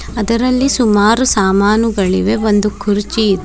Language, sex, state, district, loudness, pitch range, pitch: Kannada, female, Karnataka, Bidar, -13 LUFS, 205-230 Hz, 210 Hz